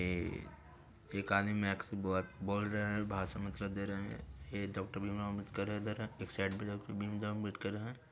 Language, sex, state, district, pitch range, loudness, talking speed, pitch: Hindi, male, Bihar, Gaya, 95-105 Hz, -39 LUFS, 190 wpm, 100 Hz